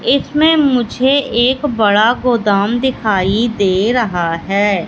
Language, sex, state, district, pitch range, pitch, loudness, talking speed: Hindi, female, Madhya Pradesh, Katni, 200-260 Hz, 230 Hz, -14 LUFS, 110 wpm